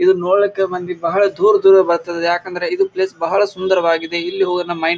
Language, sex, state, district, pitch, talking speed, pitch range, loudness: Kannada, male, Karnataka, Bijapur, 185 Hz, 205 wpm, 175-195 Hz, -16 LUFS